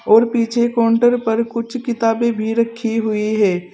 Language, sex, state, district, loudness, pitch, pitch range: Hindi, female, Uttar Pradesh, Saharanpur, -17 LUFS, 230 Hz, 220-235 Hz